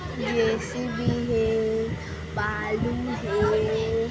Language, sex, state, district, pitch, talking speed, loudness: Hindi, female, Chhattisgarh, Kabirdham, 220 Hz, 90 wpm, -26 LUFS